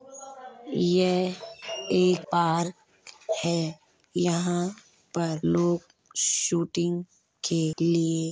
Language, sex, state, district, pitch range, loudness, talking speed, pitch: Hindi, male, Uttar Pradesh, Hamirpur, 165-185 Hz, -26 LUFS, 80 wpm, 175 Hz